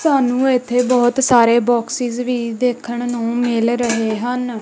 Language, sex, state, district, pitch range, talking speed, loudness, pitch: Punjabi, female, Punjab, Kapurthala, 235-250 Hz, 145 wpm, -17 LUFS, 240 Hz